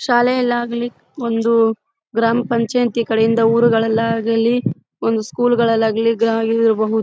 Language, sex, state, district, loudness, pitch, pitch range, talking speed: Kannada, female, Karnataka, Bellary, -17 LUFS, 230 Hz, 225-240 Hz, 70 wpm